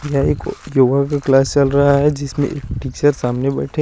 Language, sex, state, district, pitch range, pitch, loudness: Hindi, male, Chandigarh, Chandigarh, 135-145 Hz, 140 Hz, -16 LUFS